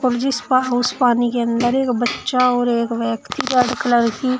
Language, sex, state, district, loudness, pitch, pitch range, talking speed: Hindi, female, Uttar Pradesh, Shamli, -18 LUFS, 245 Hz, 240-255 Hz, 175 wpm